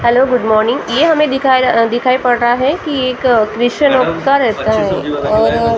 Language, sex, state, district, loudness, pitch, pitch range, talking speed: Hindi, female, Maharashtra, Gondia, -13 LUFS, 245 Hz, 230-265 Hz, 155 wpm